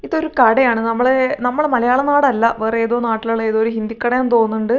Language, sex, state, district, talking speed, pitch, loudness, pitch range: Malayalam, female, Kerala, Wayanad, 175 wpm, 240 Hz, -16 LUFS, 225-260 Hz